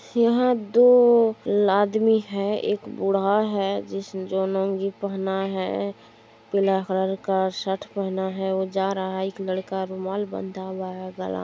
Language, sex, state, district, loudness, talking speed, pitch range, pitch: Maithili, female, Bihar, Supaul, -24 LUFS, 145 wpm, 190-205 Hz, 195 Hz